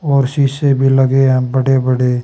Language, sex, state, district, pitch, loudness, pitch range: Hindi, male, Haryana, Charkhi Dadri, 135 Hz, -13 LUFS, 130-135 Hz